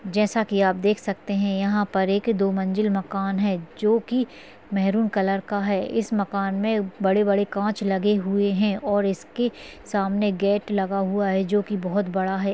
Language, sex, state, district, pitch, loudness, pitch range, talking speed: Hindi, female, Maharashtra, Sindhudurg, 200 Hz, -23 LUFS, 195-210 Hz, 185 wpm